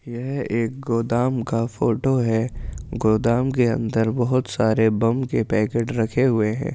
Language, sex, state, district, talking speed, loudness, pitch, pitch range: Hindi, male, Uttar Pradesh, Jyotiba Phule Nagar, 150 wpm, -21 LUFS, 115 Hz, 110-125 Hz